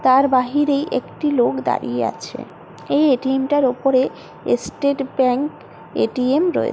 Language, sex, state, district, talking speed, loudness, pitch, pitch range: Bengali, female, West Bengal, Purulia, 125 wpm, -19 LUFS, 265 Hz, 250-280 Hz